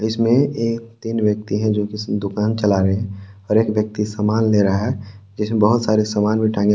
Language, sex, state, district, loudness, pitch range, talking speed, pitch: Hindi, male, Jharkhand, Palamu, -19 LUFS, 105-110 Hz, 230 wpm, 105 Hz